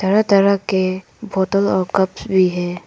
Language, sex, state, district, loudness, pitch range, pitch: Hindi, female, Arunachal Pradesh, Papum Pare, -17 LUFS, 185-200 Hz, 190 Hz